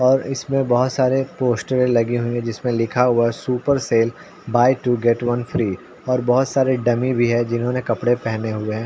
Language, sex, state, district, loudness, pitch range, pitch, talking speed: Hindi, male, Uttar Pradesh, Ghazipur, -19 LUFS, 115-130 Hz, 120 Hz, 205 wpm